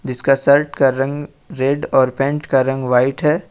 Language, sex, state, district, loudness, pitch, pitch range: Hindi, male, Jharkhand, Ranchi, -16 LUFS, 135 Hz, 130-145 Hz